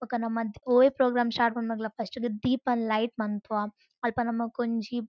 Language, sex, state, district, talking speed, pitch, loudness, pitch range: Tulu, female, Karnataka, Dakshina Kannada, 175 wpm, 235 Hz, -28 LUFS, 225-245 Hz